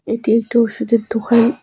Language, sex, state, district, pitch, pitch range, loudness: Bengali, female, West Bengal, Alipurduar, 230 Hz, 225-235 Hz, -16 LUFS